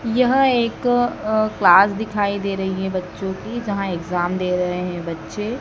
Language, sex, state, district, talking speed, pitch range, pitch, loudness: Hindi, female, Madhya Pradesh, Dhar, 170 wpm, 180-230 Hz, 200 Hz, -20 LUFS